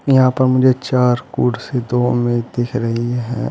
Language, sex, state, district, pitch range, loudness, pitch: Hindi, male, Uttar Pradesh, Shamli, 120-130 Hz, -17 LUFS, 125 Hz